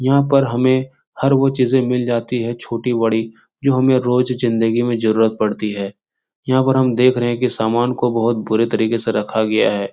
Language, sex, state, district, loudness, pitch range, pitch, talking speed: Hindi, male, Bihar, Supaul, -17 LUFS, 115-130 Hz, 120 Hz, 205 wpm